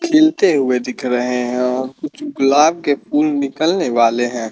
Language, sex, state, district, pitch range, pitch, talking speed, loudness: Hindi, male, Chandigarh, Chandigarh, 125-165 Hz, 135 Hz, 170 wpm, -16 LUFS